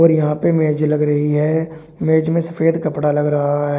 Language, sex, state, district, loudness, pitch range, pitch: Hindi, male, Uttar Pradesh, Shamli, -17 LUFS, 150-160 Hz, 155 Hz